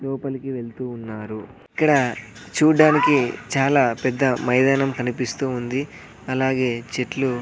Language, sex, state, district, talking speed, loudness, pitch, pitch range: Telugu, male, Andhra Pradesh, Sri Satya Sai, 95 wpm, -21 LUFS, 130 Hz, 120-135 Hz